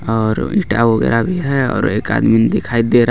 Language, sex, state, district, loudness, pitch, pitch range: Hindi, male, Jharkhand, Garhwa, -15 LUFS, 115 Hz, 115-120 Hz